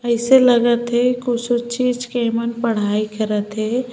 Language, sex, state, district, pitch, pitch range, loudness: Hindi, female, Chhattisgarh, Bilaspur, 240 Hz, 230-245 Hz, -18 LUFS